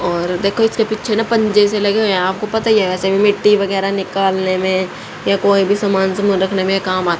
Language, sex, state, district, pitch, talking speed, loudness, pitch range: Hindi, female, Haryana, Rohtak, 195 Hz, 240 wpm, -15 LUFS, 190-210 Hz